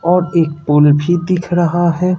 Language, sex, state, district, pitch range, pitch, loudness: Hindi, male, Bihar, Katihar, 155-175 Hz, 175 Hz, -14 LUFS